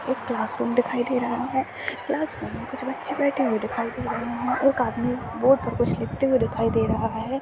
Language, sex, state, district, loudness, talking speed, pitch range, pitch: Hindi, female, Chhattisgarh, Kabirdham, -25 LUFS, 220 wpm, 240-270 Hz, 250 Hz